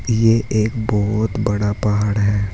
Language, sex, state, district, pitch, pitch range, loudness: Hindi, male, Uttar Pradesh, Saharanpur, 105 Hz, 105-110 Hz, -18 LUFS